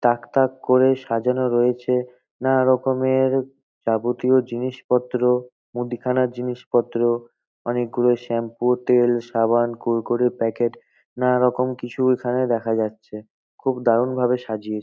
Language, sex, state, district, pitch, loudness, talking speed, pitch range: Bengali, male, West Bengal, North 24 Parganas, 125 Hz, -21 LUFS, 115 wpm, 120-125 Hz